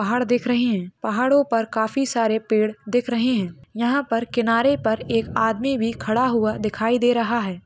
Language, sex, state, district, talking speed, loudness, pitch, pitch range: Hindi, female, Maharashtra, Dhule, 195 wpm, -21 LUFS, 230 Hz, 220-245 Hz